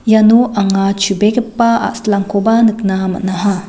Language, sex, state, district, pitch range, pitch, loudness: Garo, female, Meghalaya, West Garo Hills, 195-225 Hz, 205 Hz, -13 LUFS